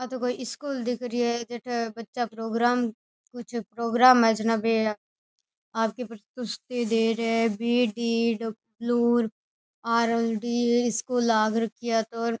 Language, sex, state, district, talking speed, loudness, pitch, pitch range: Rajasthani, female, Rajasthan, Nagaur, 135 wpm, -26 LUFS, 235 Hz, 225-240 Hz